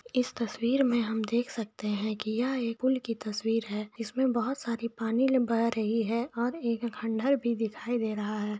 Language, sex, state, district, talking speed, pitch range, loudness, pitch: Hindi, female, Jharkhand, Jamtara, 210 wpm, 220-245 Hz, -30 LUFS, 230 Hz